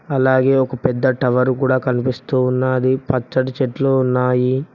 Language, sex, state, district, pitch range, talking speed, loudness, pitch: Telugu, male, Telangana, Mahabubabad, 125-130 Hz, 125 wpm, -17 LUFS, 130 Hz